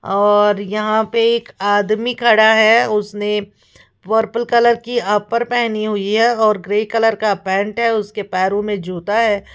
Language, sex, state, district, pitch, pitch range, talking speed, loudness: Hindi, female, Uttar Pradesh, Lalitpur, 215 Hz, 205-230 Hz, 165 wpm, -16 LUFS